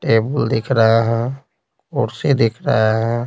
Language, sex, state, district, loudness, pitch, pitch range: Hindi, male, Bihar, Patna, -17 LUFS, 115 Hz, 110-135 Hz